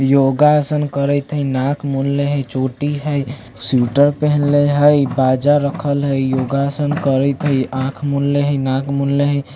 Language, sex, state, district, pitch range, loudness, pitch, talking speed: Bajjika, male, Bihar, Vaishali, 135-145 Hz, -16 LUFS, 140 Hz, 165 wpm